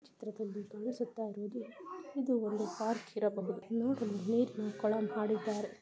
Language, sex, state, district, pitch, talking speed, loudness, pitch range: Kannada, female, Karnataka, Bijapur, 220 Hz, 105 wpm, -37 LUFS, 210-240 Hz